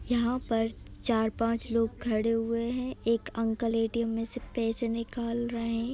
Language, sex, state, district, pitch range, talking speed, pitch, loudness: Hindi, female, Uttar Pradesh, Jalaun, 225-235 Hz, 180 wpm, 230 Hz, -30 LUFS